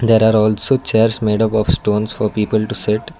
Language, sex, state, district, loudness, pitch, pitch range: English, male, Karnataka, Bangalore, -16 LUFS, 110 Hz, 105-110 Hz